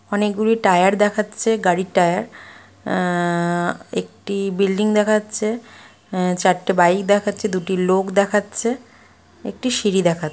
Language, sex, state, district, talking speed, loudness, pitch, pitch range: Bengali, female, West Bengal, Malda, 105 wpm, -19 LUFS, 195 Hz, 180-210 Hz